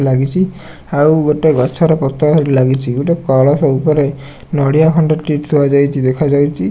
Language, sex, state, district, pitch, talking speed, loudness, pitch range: Odia, male, Odisha, Nuapada, 145 Hz, 145 wpm, -13 LUFS, 135-155 Hz